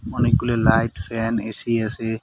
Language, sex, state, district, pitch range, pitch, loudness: Bengali, male, West Bengal, Cooch Behar, 110-115 Hz, 115 Hz, -21 LUFS